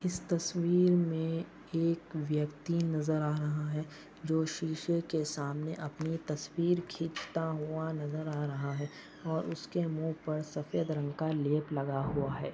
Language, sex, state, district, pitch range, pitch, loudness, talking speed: Hindi, male, Goa, North and South Goa, 150-165 Hz, 155 Hz, -34 LUFS, 155 wpm